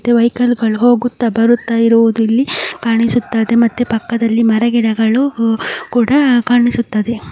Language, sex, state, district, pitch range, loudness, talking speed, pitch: Kannada, male, Karnataka, Mysore, 225-245 Hz, -13 LUFS, 75 wpm, 235 Hz